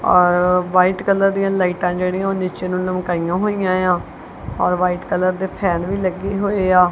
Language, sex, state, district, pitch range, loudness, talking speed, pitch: Punjabi, male, Punjab, Kapurthala, 180-190 Hz, -18 LUFS, 180 wpm, 185 Hz